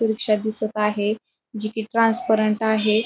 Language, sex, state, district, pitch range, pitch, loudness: Marathi, female, Maharashtra, Pune, 215-220 Hz, 215 Hz, -22 LUFS